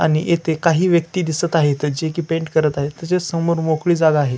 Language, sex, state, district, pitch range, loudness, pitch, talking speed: Marathi, male, Maharashtra, Chandrapur, 155-170 Hz, -18 LUFS, 160 Hz, 220 wpm